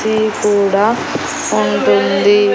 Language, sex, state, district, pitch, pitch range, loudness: Telugu, female, Andhra Pradesh, Annamaya, 220 Hz, 210-245 Hz, -14 LUFS